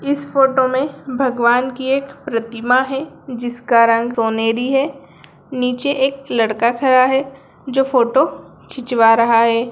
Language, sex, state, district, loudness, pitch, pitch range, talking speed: Hindi, female, Bihar, Sitamarhi, -16 LUFS, 255 Hz, 235-270 Hz, 135 wpm